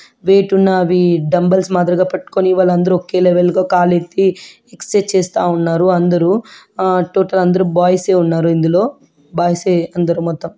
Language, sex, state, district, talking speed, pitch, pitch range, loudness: Telugu, male, Telangana, Karimnagar, 145 wpm, 180 Hz, 175-185 Hz, -14 LUFS